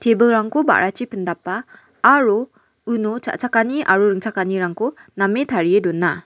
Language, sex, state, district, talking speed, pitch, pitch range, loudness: Garo, female, Meghalaya, West Garo Hills, 105 wpm, 220 Hz, 190-235 Hz, -18 LUFS